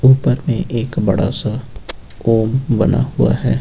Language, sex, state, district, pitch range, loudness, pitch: Hindi, male, Uttar Pradesh, Lucknow, 110-130 Hz, -16 LUFS, 115 Hz